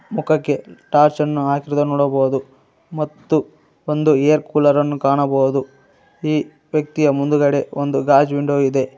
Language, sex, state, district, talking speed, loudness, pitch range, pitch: Kannada, male, Karnataka, Koppal, 120 wpm, -18 LUFS, 140-150 Hz, 145 Hz